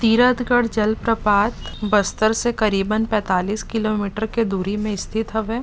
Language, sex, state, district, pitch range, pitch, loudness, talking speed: Chhattisgarhi, female, Chhattisgarh, Bastar, 210-225 Hz, 215 Hz, -20 LUFS, 140 wpm